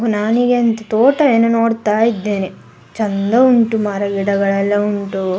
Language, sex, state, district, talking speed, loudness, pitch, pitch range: Kannada, female, Karnataka, Dakshina Kannada, 125 wpm, -15 LUFS, 215 Hz, 200-230 Hz